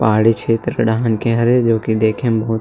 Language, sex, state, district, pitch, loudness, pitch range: Chhattisgarhi, male, Chhattisgarh, Sarguja, 115 Hz, -16 LUFS, 110-115 Hz